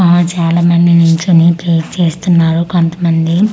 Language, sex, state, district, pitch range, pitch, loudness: Telugu, female, Andhra Pradesh, Manyam, 165-175 Hz, 170 Hz, -11 LUFS